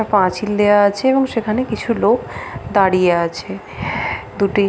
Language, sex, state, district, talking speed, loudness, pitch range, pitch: Bengali, female, West Bengal, Paschim Medinipur, 140 wpm, -17 LUFS, 195-225 Hz, 205 Hz